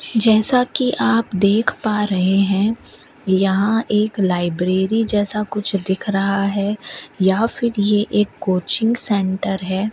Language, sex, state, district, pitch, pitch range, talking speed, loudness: Hindi, female, Rajasthan, Bikaner, 205 Hz, 195-220 Hz, 135 wpm, -18 LUFS